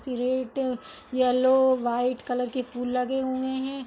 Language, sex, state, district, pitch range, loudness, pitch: Hindi, female, Uttar Pradesh, Hamirpur, 250-265 Hz, -26 LUFS, 255 Hz